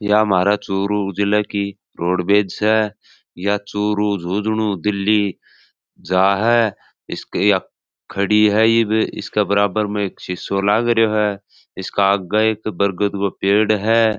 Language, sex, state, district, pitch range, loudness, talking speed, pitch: Marwari, male, Rajasthan, Churu, 100-110 Hz, -18 LUFS, 125 wpm, 105 Hz